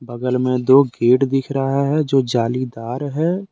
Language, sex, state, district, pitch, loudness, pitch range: Hindi, male, Jharkhand, Deoghar, 135 Hz, -18 LUFS, 125-140 Hz